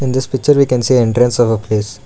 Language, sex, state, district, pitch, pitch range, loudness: English, male, Karnataka, Bangalore, 125 Hz, 115-130 Hz, -13 LUFS